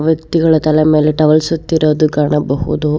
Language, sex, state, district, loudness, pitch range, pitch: Kannada, female, Karnataka, Bangalore, -13 LUFS, 150-160 Hz, 155 Hz